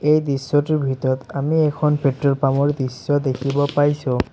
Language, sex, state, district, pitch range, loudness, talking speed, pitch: Assamese, male, Assam, Sonitpur, 135-145 Hz, -20 LUFS, 150 wpm, 140 Hz